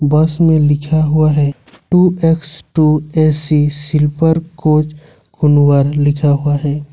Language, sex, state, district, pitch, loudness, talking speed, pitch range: Hindi, male, Jharkhand, Ranchi, 150 Hz, -13 LUFS, 130 wpm, 145-155 Hz